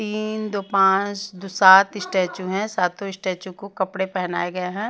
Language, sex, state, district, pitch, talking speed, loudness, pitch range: Hindi, female, Punjab, Pathankot, 190 Hz, 170 wpm, -21 LUFS, 185-205 Hz